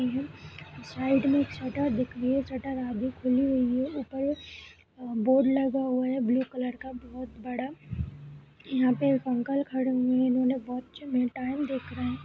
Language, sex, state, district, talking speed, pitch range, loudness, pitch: Hindi, female, Uttar Pradesh, Budaun, 170 wpm, 250-270 Hz, -28 LUFS, 255 Hz